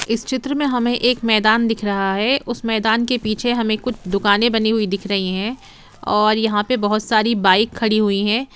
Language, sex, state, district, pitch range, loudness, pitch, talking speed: Hindi, female, Jharkhand, Sahebganj, 210-240 Hz, -18 LUFS, 220 Hz, 210 wpm